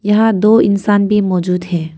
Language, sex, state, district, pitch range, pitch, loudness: Hindi, female, Arunachal Pradesh, Papum Pare, 180-210 Hz, 200 Hz, -13 LUFS